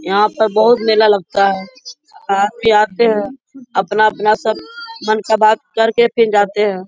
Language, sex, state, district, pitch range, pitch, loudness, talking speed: Hindi, female, Bihar, Bhagalpur, 205-235 Hz, 215 Hz, -14 LUFS, 155 wpm